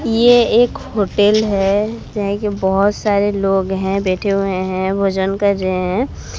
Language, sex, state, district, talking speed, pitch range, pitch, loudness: Hindi, female, Odisha, Sambalpur, 160 wpm, 190-210 Hz, 200 Hz, -16 LUFS